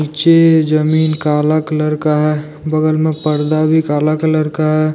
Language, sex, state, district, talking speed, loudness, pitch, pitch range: Hindi, male, Jharkhand, Deoghar, 170 wpm, -14 LUFS, 155 Hz, 150-155 Hz